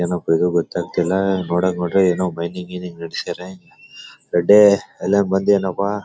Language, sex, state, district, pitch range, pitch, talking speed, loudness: Kannada, male, Karnataka, Bellary, 90-95 Hz, 90 Hz, 130 wpm, -18 LUFS